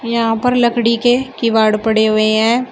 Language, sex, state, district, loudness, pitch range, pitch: Hindi, female, Uttar Pradesh, Shamli, -14 LUFS, 220-240 Hz, 230 Hz